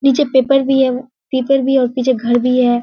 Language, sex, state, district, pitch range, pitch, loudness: Hindi, female, Bihar, Kishanganj, 250-270 Hz, 260 Hz, -14 LUFS